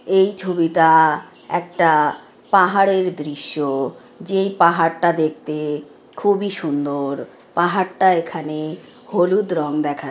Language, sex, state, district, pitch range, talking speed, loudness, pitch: Bengali, female, West Bengal, Jhargram, 150-185 Hz, 85 wpm, -19 LUFS, 165 Hz